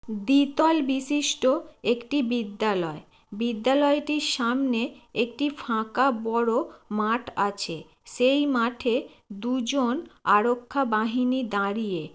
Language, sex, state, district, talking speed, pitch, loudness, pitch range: Bengali, female, West Bengal, Jalpaiguri, 85 wpm, 240 Hz, -25 LUFS, 220-275 Hz